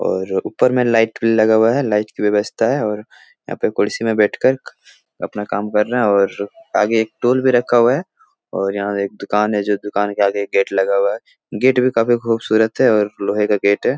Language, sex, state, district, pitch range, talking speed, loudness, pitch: Hindi, male, Bihar, Jahanabad, 100-120 Hz, 230 wpm, -17 LUFS, 105 Hz